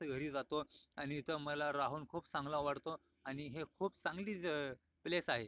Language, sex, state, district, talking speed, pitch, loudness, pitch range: Marathi, male, Maharashtra, Aurangabad, 165 wpm, 150 Hz, -42 LUFS, 140-160 Hz